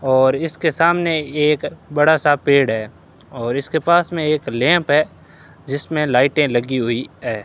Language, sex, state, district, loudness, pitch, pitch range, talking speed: Hindi, male, Rajasthan, Bikaner, -17 LUFS, 150 Hz, 130-160 Hz, 160 wpm